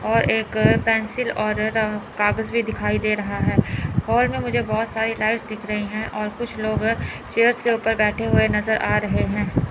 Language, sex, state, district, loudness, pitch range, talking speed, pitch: Hindi, male, Chandigarh, Chandigarh, -21 LUFS, 210-225 Hz, 200 wpm, 215 Hz